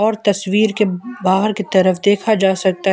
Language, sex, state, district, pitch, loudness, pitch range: Hindi, male, Uttar Pradesh, Lucknow, 200 Hz, -16 LUFS, 190-215 Hz